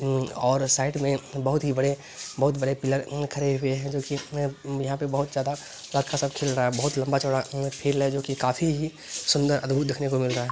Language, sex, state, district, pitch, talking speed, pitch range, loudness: Hindi, male, Bihar, Lakhisarai, 140 Hz, 245 wpm, 135-140 Hz, -26 LUFS